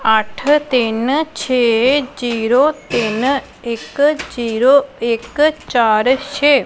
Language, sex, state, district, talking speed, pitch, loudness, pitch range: Punjabi, female, Punjab, Pathankot, 90 wpm, 255 Hz, -16 LUFS, 230-285 Hz